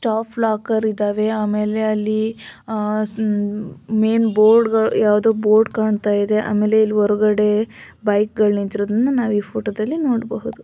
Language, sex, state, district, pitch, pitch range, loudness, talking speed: Kannada, female, Karnataka, Shimoga, 215 Hz, 210-220 Hz, -18 LUFS, 145 wpm